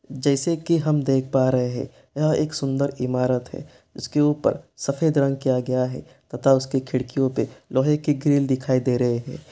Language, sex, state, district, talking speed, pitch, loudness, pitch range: Hindi, male, Bihar, East Champaran, 190 wpm, 135 Hz, -22 LUFS, 130-145 Hz